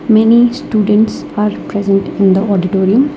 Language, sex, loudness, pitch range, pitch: English, female, -12 LUFS, 195-230 Hz, 210 Hz